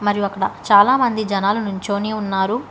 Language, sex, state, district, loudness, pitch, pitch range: Telugu, female, Telangana, Hyderabad, -18 LUFS, 205 Hz, 200-215 Hz